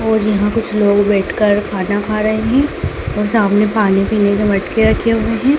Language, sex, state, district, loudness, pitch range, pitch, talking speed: Hindi, male, Madhya Pradesh, Dhar, -15 LUFS, 205-220 Hz, 210 Hz, 195 wpm